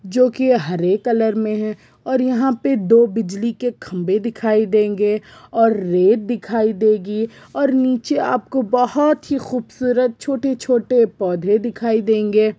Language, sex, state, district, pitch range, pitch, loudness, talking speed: Hindi, female, Jharkhand, Sahebganj, 215-250 Hz, 225 Hz, -18 LUFS, 145 wpm